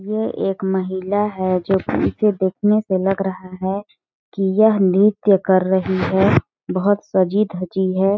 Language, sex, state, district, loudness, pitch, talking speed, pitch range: Hindi, female, Chhattisgarh, Balrampur, -18 LUFS, 190 Hz, 160 wpm, 185-205 Hz